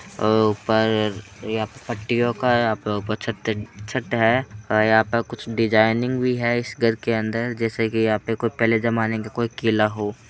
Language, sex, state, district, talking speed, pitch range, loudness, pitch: Hindi, male, Uttar Pradesh, Hamirpur, 190 wpm, 110-120 Hz, -22 LUFS, 115 Hz